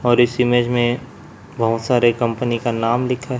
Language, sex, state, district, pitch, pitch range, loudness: Hindi, male, Chhattisgarh, Raipur, 120 Hz, 120-125 Hz, -18 LUFS